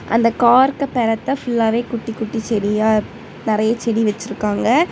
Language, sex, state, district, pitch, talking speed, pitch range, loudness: Tamil, female, Tamil Nadu, Kanyakumari, 225 Hz, 120 wpm, 220-240 Hz, -18 LUFS